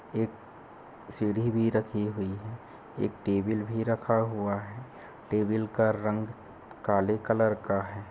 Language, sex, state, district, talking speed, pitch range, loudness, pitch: Hindi, male, Chhattisgarh, Bilaspur, 140 wpm, 105-110 Hz, -29 LUFS, 110 Hz